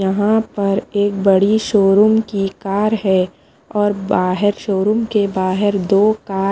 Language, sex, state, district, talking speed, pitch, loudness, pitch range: Hindi, female, Punjab, Fazilka, 140 wpm, 200 Hz, -16 LUFS, 195-210 Hz